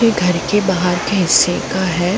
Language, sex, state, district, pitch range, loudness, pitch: Hindi, female, Chhattisgarh, Bilaspur, 180-200 Hz, -15 LUFS, 185 Hz